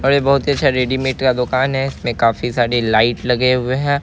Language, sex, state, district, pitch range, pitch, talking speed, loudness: Hindi, male, Bihar, Araria, 120-135 Hz, 130 Hz, 255 wpm, -16 LUFS